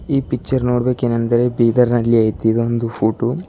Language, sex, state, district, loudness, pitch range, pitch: Kannada, male, Karnataka, Bidar, -17 LUFS, 115-125 Hz, 120 Hz